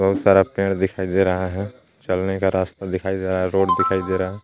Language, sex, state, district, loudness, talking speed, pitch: Hindi, male, Jharkhand, Garhwa, -20 LUFS, 255 wpm, 95 Hz